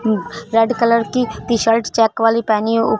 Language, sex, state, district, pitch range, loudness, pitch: Hindi, female, Punjab, Fazilka, 220-230 Hz, -16 LUFS, 225 Hz